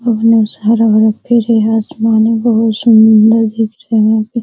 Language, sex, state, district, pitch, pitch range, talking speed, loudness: Hindi, female, Bihar, Araria, 225 Hz, 220-230 Hz, 165 wpm, -11 LUFS